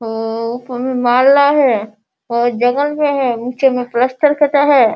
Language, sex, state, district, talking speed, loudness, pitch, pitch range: Hindi, female, Bihar, Sitamarhi, 155 wpm, -14 LUFS, 250 Hz, 235-285 Hz